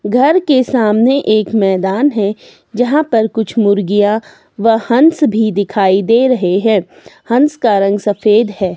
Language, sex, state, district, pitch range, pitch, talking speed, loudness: Hindi, female, Himachal Pradesh, Shimla, 200-245 Hz, 220 Hz, 150 wpm, -12 LUFS